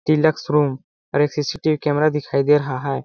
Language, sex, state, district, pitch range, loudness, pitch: Hindi, male, Chhattisgarh, Balrampur, 140-155 Hz, -19 LUFS, 150 Hz